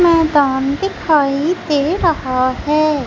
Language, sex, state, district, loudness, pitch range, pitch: Hindi, female, Madhya Pradesh, Umaria, -15 LUFS, 275-330 Hz, 300 Hz